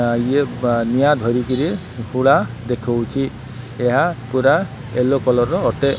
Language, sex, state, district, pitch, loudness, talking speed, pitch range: Odia, male, Odisha, Malkangiri, 125 Hz, -18 LUFS, 100 wpm, 120-140 Hz